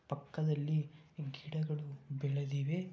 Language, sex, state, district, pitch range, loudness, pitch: Kannada, male, Karnataka, Bellary, 140-155 Hz, -39 LUFS, 150 Hz